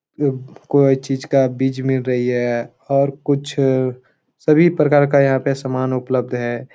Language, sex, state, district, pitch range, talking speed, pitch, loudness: Hindi, male, Uttar Pradesh, Etah, 130-140 Hz, 170 wpm, 135 Hz, -18 LUFS